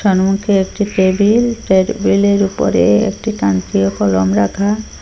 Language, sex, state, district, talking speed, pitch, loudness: Bengali, female, Assam, Hailakandi, 110 wpm, 195 Hz, -14 LUFS